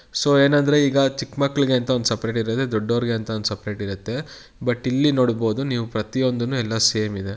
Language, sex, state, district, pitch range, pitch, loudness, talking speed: Kannada, male, Karnataka, Mysore, 110-135 Hz, 120 Hz, -21 LUFS, 190 wpm